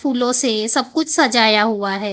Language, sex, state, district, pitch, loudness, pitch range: Hindi, male, Maharashtra, Gondia, 245 Hz, -16 LUFS, 215-275 Hz